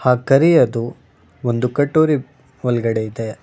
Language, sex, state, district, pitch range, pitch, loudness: Kannada, male, Karnataka, Bangalore, 115-140 Hz, 125 Hz, -17 LUFS